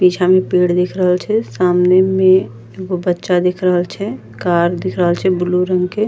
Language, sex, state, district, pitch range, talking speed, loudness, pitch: Angika, female, Bihar, Bhagalpur, 180-185 Hz, 195 wpm, -15 LUFS, 180 Hz